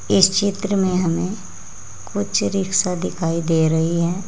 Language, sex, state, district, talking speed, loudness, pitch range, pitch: Hindi, female, Uttar Pradesh, Saharanpur, 140 wpm, -19 LUFS, 165-190 Hz, 180 Hz